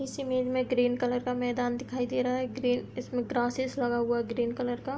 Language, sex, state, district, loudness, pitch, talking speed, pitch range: Hindi, female, Uttar Pradesh, Hamirpur, -30 LUFS, 250 Hz, 250 wpm, 245-255 Hz